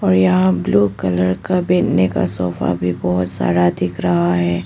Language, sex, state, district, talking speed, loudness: Hindi, female, Arunachal Pradesh, Papum Pare, 180 wpm, -16 LUFS